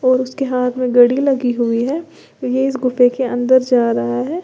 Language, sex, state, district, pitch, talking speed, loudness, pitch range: Hindi, female, Uttar Pradesh, Lalitpur, 255 Hz, 215 wpm, -16 LUFS, 245-265 Hz